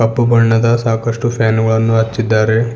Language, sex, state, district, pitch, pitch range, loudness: Kannada, male, Karnataka, Bidar, 115 Hz, 110-115 Hz, -13 LUFS